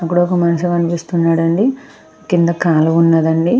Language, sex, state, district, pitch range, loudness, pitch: Telugu, female, Andhra Pradesh, Krishna, 165-175 Hz, -14 LUFS, 170 Hz